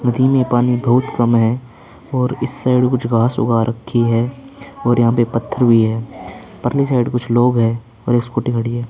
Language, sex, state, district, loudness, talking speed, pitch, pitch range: Hindi, male, Uttarakhand, Tehri Garhwal, -16 LUFS, 200 wpm, 120 Hz, 115-125 Hz